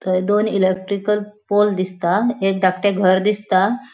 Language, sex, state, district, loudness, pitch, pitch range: Konkani, female, Goa, North and South Goa, -18 LUFS, 200 Hz, 185-210 Hz